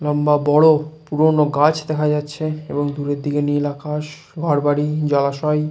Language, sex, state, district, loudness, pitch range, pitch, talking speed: Bengali, male, West Bengal, Jalpaiguri, -18 LUFS, 145-155 Hz, 150 Hz, 135 wpm